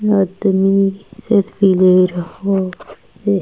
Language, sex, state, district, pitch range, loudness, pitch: Hindi, female, Delhi, New Delhi, 185-200 Hz, -15 LUFS, 195 Hz